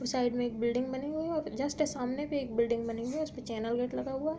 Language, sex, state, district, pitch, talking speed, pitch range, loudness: Hindi, female, Uttar Pradesh, Budaun, 255 Hz, 275 wpm, 235-290 Hz, -33 LUFS